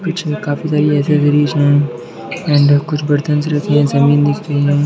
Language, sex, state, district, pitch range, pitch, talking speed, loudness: Hindi, male, Bihar, Darbhanga, 145-150 Hz, 145 Hz, 175 wpm, -14 LUFS